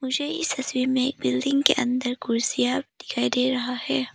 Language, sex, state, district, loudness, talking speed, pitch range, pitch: Hindi, female, Arunachal Pradesh, Papum Pare, -24 LUFS, 190 wpm, 245-275 Hz, 255 Hz